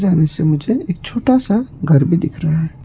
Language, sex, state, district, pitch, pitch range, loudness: Hindi, male, West Bengal, Alipurduar, 160 Hz, 155-205 Hz, -16 LUFS